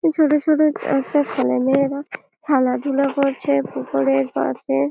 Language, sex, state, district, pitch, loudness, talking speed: Bengali, female, West Bengal, Malda, 275 Hz, -19 LUFS, 135 wpm